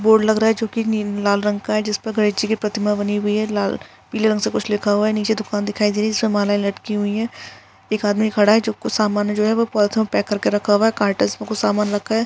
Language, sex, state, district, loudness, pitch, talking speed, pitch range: Hindi, female, Karnataka, Belgaum, -19 LUFS, 210 Hz, 285 wpm, 205-220 Hz